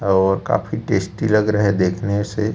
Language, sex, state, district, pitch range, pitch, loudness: Hindi, male, Chhattisgarh, Raipur, 95-105 Hz, 100 Hz, -19 LUFS